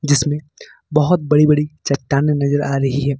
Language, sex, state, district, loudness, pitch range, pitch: Hindi, male, Jharkhand, Ranchi, -17 LUFS, 140-150 Hz, 145 Hz